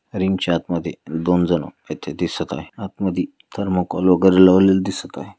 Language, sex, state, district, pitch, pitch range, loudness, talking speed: Marathi, male, Maharashtra, Pune, 90 Hz, 85-95 Hz, -19 LUFS, 180 wpm